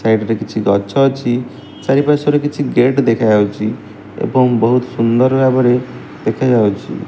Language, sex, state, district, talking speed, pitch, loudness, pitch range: Odia, male, Odisha, Malkangiri, 120 wpm, 120 Hz, -14 LUFS, 110-130 Hz